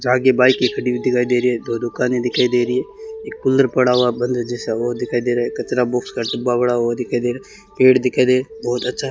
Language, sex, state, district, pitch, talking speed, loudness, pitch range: Hindi, male, Rajasthan, Bikaner, 125 Hz, 270 wpm, -18 LUFS, 120-130 Hz